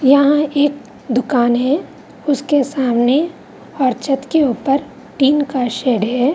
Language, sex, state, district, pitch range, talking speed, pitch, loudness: Hindi, female, Bihar, Vaishali, 250-285 Hz, 130 wpm, 275 Hz, -16 LUFS